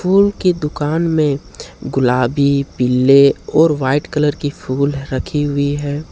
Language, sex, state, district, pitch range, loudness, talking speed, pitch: Hindi, male, Jharkhand, Ranchi, 135-150 Hz, -16 LUFS, 135 wpm, 145 Hz